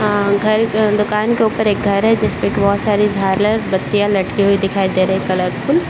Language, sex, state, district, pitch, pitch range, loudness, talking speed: Hindi, male, Bihar, Saran, 205 Hz, 195-215 Hz, -15 LUFS, 215 wpm